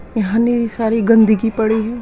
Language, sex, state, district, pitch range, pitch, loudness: Hindi, female, Uttar Pradesh, Muzaffarnagar, 220-230 Hz, 225 Hz, -15 LUFS